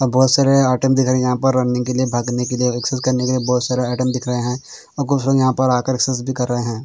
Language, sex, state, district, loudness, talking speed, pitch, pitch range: Hindi, male, Bihar, Patna, -18 LUFS, 315 wpm, 125 Hz, 125-130 Hz